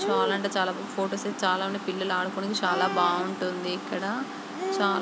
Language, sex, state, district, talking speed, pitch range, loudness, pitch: Telugu, female, Andhra Pradesh, Guntur, 120 wpm, 185-200 Hz, -28 LUFS, 190 Hz